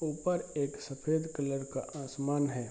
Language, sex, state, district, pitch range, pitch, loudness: Hindi, male, Bihar, Bhagalpur, 135-155 Hz, 145 Hz, -35 LUFS